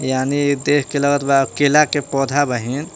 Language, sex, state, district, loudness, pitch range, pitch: Bhojpuri, male, Jharkhand, Palamu, -17 LUFS, 135-145 Hz, 140 Hz